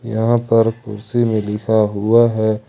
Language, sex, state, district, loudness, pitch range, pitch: Hindi, male, Jharkhand, Ranchi, -16 LUFS, 105-115 Hz, 110 Hz